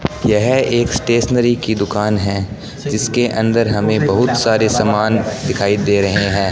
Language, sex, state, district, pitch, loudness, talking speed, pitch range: Hindi, male, Rajasthan, Bikaner, 110 Hz, -15 LUFS, 145 wpm, 105-120 Hz